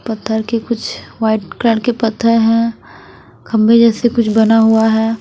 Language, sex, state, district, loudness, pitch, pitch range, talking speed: Hindi, female, Punjab, Kapurthala, -13 LUFS, 225 Hz, 220-230 Hz, 160 wpm